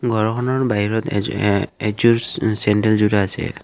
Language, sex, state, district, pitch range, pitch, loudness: Assamese, male, Assam, Kamrup Metropolitan, 105-115 Hz, 110 Hz, -19 LUFS